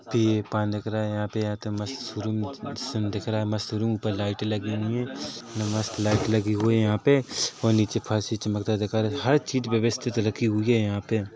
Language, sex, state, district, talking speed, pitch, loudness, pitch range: Hindi, male, Chhattisgarh, Rajnandgaon, 245 wpm, 110 Hz, -26 LUFS, 105-115 Hz